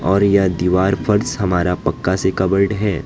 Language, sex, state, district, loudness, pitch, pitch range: Hindi, male, West Bengal, Alipurduar, -17 LUFS, 95 Hz, 90-100 Hz